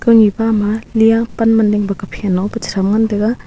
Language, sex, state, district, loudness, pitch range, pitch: Wancho, female, Arunachal Pradesh, Longding, -14 LUFS, 205-225 Hz, 220 Hz